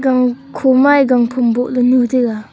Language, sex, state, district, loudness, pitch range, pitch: Wancho, female, Arunachal Pradesh, Longding, -13 LUFS, 245-260 Hz, 250 Hz